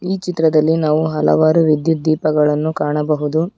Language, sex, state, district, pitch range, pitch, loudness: Kannada, female, Karnataka, Bangalore, 150-160 Hz, 155 Hz, -16 LUFS